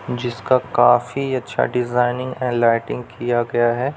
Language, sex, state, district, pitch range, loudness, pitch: Hindi, male, Bihar, Jamui, 120-130 Hz, -19 LUFS, 125 Hz